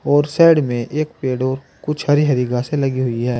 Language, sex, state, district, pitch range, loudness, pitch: Hindi, male, Uttar Pradesh, Saharanpur, 125-150 Hz, -17 LUFS, 135 Hz